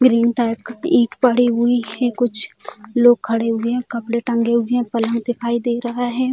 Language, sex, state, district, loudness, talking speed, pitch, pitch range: Hindi, female, Bihar, Jamui, -18 LUFS, 200 wpm, 240 Hz, 235-245 Hz